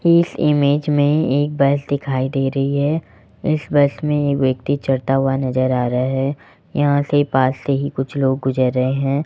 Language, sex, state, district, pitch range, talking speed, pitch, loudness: Hindi, male, Rajasthan, Jaipur, 130-145 Hz, 195 wpm, 140 Hz, -18 LUFS